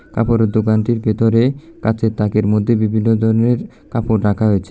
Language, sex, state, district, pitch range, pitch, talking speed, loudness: Bengali, male, Tripura, South Tripura, 110-115 Hz, 110 Hz, 140 wpm, -16 LUFS